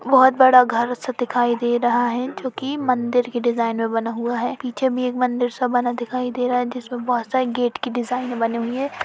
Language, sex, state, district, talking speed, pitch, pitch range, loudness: Hindi, female, Uttar Pradesh, Jalaun, 230 wpm, 245 Hz, 240-255 Hz, -20 LUFS